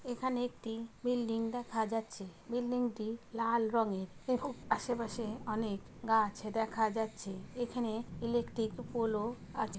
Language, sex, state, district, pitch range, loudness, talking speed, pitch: Bengali, female, West Bengal, Jalpaiguri, 215-240 Hz, -36 LUFS, 125 wpm, 225 Hz